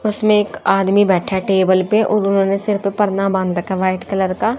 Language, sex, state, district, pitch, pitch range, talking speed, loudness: Hindi, female, Haryana, Jhajjar, 195 Hz, 190-205 Hz, 250 wpm, -16 LUFS